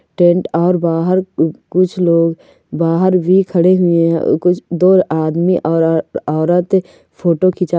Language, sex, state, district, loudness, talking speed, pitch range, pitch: Hindi, female, Goa, North and South Goa, -14 LUFS, 125 wpm, 165-185 Hz, 175 Hz